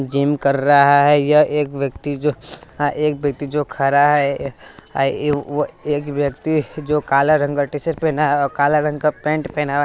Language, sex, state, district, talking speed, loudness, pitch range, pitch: Hindi, male, Bihar, West Champaran, 190 wpm, -18 LUFS, 140-150 Hz, 145 Hz